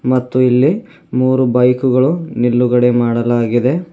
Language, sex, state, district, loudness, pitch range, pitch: Kannada, male, Karnataka, Bidar, -14 LUFS, 120-130 Hz, 125 Hz